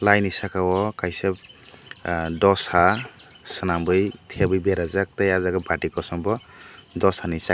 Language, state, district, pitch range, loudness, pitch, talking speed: Kokborok, Tripura, Dhalai, 90-100 Hz, -23 LUFS, 95 Hz, 145 wpm